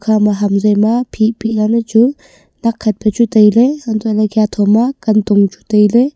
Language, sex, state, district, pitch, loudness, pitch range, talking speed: Wancho, female, Arunachal Pradesh, Longding, 215 Hz, -13 LUFS, 210-230 Hz, 215 wpm